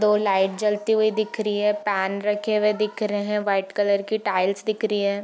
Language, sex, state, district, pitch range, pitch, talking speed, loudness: Hindi, female, Bihar, Gopalganj, 200-215 Hz, 210 Hz, 230 wpm, -23 LUFS